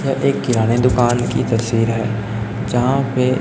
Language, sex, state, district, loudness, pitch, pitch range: Hindi, male, Chhattisgarh, Raipur, -17 LUFS, 120 Hz, 115-130 Hz